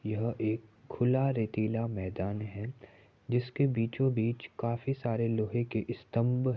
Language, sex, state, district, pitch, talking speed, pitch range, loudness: Hindi, male, Uttar Pradesh, Muzaffarnagar, 115 Hz, 130 wpm, 110-125 Hz, -32 LUFS